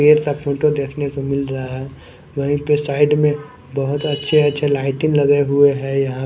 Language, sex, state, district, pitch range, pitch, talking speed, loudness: Hindi, male, Chandigarh, Chandigarh, 135-150 Hz, 145 Hz, 190 wpm, -18 LUFS